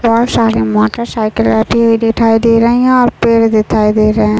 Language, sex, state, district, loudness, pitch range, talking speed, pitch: Hindi, male, Chhattisgarh, Raigarh, -11 LUFS, 215-230 Hz, 220 wpm, 225 Hz